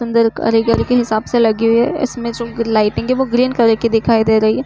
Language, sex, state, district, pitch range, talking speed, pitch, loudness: Hindi, female, Uttar Pradesh, Budaun, 225-240 Hz, 245 wpm, 230 Hz, -15 LUFS